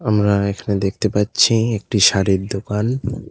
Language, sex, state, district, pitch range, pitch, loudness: Bengali, male, West Bengal, Cooch Behar, 100-115 Hz, 105 Hz, -18 LUFS